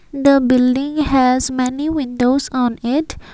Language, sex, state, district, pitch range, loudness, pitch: English, female, Assam, Kamrup Metropolitan, 255-280 Hz, -16 LUFS, 260 Hz